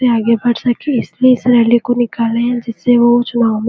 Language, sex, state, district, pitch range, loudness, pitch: Hindi, female, Chhattisgarh, Bilaspur, 230-245 Hz, -13 LUFS, 240 Hz